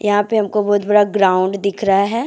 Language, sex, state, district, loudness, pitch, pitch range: Hindi, female, Jharkhand, Deoghar, -16 LUFS, 205 Hz, 200-210 Hz